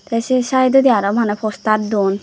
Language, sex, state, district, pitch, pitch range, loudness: Chakma, female, Tripura, Dhalai, 225 Hz, 210-255 Hz, -16 LUFS